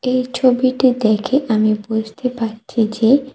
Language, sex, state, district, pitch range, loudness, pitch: Bengali, female, Tripura, West Tripura, 220-255 Hz, -17 LUFS, 245 Hz